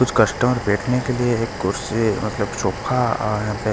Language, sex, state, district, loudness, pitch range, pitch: Hindi, male, Delhi, New Delhi, -21 LUFS, 105-125 Hz, 110 Hz